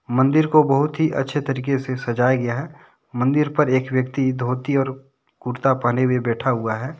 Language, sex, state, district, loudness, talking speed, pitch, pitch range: Hindi, male, Jharkhand, Deoghar, -20 LUFS, 190 wpm, 130 Hz, 125-140 Hz